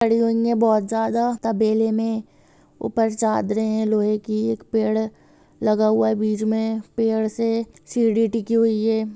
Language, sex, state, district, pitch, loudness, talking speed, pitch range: Hindi, female, Bihar, Sitamarhi, 220 Hz, -21 LUFS, 170 wpm, 215-225 Hz